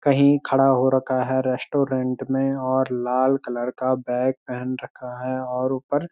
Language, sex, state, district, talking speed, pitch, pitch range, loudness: Hindi, male, Uttarakhand, Uttarkashi, 175 wpm, 130 Hz, 125-135 Hz, -22 LUFS